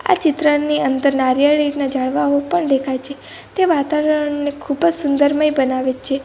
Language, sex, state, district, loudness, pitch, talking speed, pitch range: Gujarati, female, Gujarat, Valsad, -17 LUFS, 285 Hz, 135 wpm, 270-300 Hz